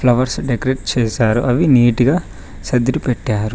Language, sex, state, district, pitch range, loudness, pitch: Telugu, male, Telangana, Mahabubabad, 110-130 Hz, -16 LUFS, 125 Hz